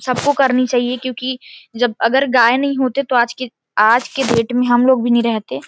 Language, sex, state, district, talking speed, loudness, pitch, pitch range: Hindi, female, Chhattisgarh, Rajnandgaon, 235 wpm, -16 LUFS, 250 Hz, 235-260 Hz